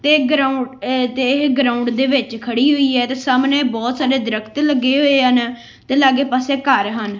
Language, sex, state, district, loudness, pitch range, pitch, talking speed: Punjabi, female, Punjab, Kapurthala, -16 LUFS, 245-275 Hz, 260 Hz, 200 wpm